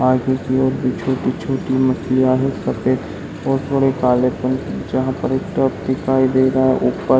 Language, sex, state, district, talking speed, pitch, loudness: Hindi, male, Chhattisgarh, Raigarh, 190 wpm, 130 Hz, -18 LUFS